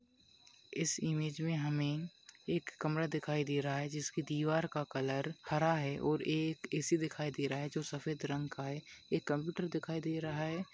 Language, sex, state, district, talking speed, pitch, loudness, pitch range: Hindi, female, West Bengal, Dakshin Dinajpur, 185 wpm, 155 Hz, -37 LUFS, 145-160 Hz